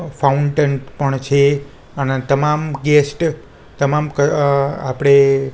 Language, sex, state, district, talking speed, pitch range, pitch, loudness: Gujarati, male, Gujarat, Gandhinagar, 100 wpm, 135-150 Hz, 140 Hz, -16 LUFS